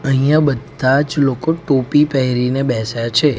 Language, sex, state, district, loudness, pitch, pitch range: Gujarati, male, Gujarat, Gandhinagar, -16 LUFS, 135 Hz, 125-145 Hz